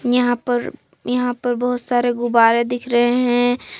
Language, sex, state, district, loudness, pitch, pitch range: Hindi, female, Jharkhand, Palamu, -18 LUFS, 245 Hz, 240-245 Hz